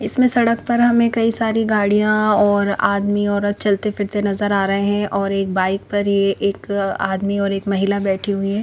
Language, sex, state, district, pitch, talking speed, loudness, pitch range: Hindi, female, Chandigarh, Chandigarh, 205 Hz, 200 wpm, -18 LUFS, 200-215 Hz